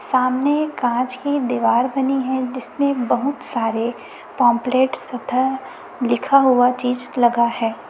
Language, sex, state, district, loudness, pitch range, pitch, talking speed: Hindi, female, Chhattisgarh, Raipur, -19 LUFS, 240-270 Hz, 255 Hz, 120 wpm